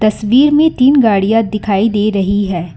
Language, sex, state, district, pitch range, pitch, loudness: Hindi, female, Karnataka, Bangalore, 200-245 Hz, 215 Hz, -12 LUFS